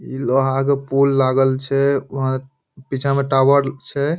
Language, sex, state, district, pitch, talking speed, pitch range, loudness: Maithili, male, Bihar, Madhepura, 135 Hz, 155 wpm, 135-140 Hz, -18 LUFS